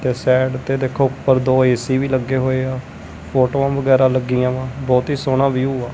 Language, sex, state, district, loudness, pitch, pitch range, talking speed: Punjabi, male, Punjab, Kapurthala, -17 LUFS, 130 Hz, 125-135 Hz, 200 wpm